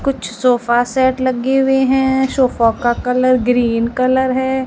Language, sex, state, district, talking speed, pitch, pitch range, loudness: Hindi, female, Rajasthan, Jaisalmer, 155 wpm, 255 Hz, 240-265 Hz, -15 LUFS